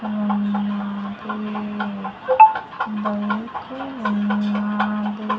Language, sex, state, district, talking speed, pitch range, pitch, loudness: Telugu, female, Andhra Pradesh, Manyam, 45 wpm, 205-210 Hz, 210 Hz, -21 LUFS